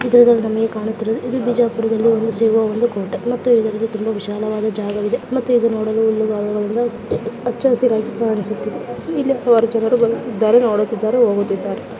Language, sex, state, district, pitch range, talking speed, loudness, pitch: Kannada, male, Karnataka, Bijapur, 215-240 Hz, 95 wpm, -18 LUFS, 225 Hz